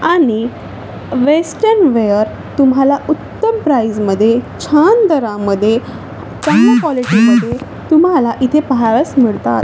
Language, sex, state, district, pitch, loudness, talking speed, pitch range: Marathi, female, Maharashtra, Chandrapur, 255 Hz, -12 LUFS, 100 wpm, 225-310 Hz